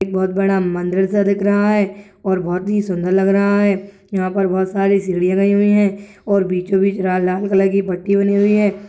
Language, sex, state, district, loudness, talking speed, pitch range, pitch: Hindi, male, Chhattisgarh, Balrampur, -17 LUFS, 230 wpm, 190-200 Hz, 195 Hz